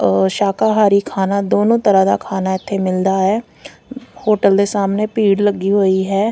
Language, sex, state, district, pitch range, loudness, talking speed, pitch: Punjabi, female, Punjab, Fazilka, 190-210 Hz, -15 LUFS, 160 wpm, 200 Hz